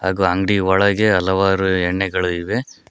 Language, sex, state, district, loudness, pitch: Kannada, male, Karnataka, Koppal, -17 LUFS, 95 Hz